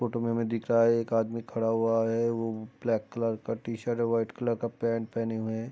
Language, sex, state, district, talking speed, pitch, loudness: Hindi, male, Bihar, Darbhanga, 250 wpm, 115 Hz, -29 LUFS